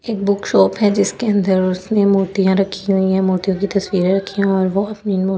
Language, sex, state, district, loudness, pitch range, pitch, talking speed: Hindi, female, Delhi, New Delhi, -16 LUFS, 190-200 Hz, 195 Hz, 255 wpm